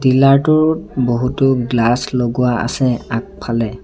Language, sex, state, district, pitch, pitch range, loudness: Assamese, male, Assam, Sonitpur, 125 Hz, 120-135 Hz, -16 LUFS